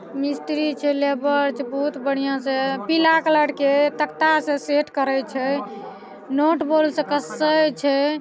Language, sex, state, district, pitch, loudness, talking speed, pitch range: Maithili, female, Bihar, Saharsa, 290 Hz, -21 LUFS, 145 wpm, 275-305 Hz